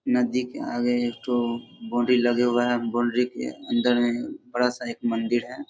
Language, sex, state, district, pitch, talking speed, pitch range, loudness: Hindi, male, Bihar, Darbhanga, 120 Hz, 190 wpm, 120-125 Hz, -25 LUFS